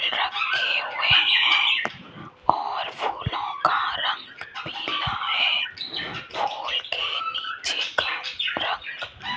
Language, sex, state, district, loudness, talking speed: Hindi, female, Rajasthan, Jaipur, -23 LUFS, 95 wpm